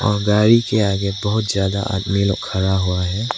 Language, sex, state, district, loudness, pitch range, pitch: Hindi, male, Arunachal Pradesh, Lower Dibang Valley, -18 LUFS, 95-105 Hz, 100 Hz